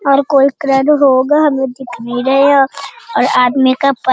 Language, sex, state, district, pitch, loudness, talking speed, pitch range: Hindi, female, Bihar, Jamui, 275 Hz, -12 LUFS, 205 wpm, 260-280 Hz